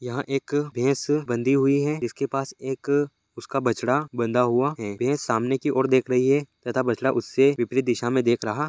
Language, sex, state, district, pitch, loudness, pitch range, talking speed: Hindi, male, Maharashtra, Sindhudurg, 130 Hz, -24 LUFS, 120-140 Hz, 200 wpm